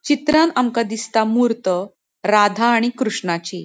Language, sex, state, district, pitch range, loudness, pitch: Konkani, female, Goa, North and South Goa, 205-245 Hz, -18 LUFS, 230 Hz